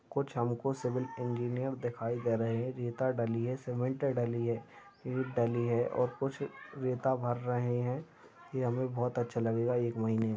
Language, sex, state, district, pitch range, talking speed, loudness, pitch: Hindi, male, Chhattisgarh, Bastar, 120-130 Hz, 185 wpm, -34 LUFS, 120 Hz